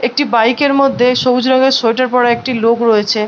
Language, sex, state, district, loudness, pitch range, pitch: Bengali, female, West Bengal, Malda, -12 LUFS, 230-260 Hz, 245 Hz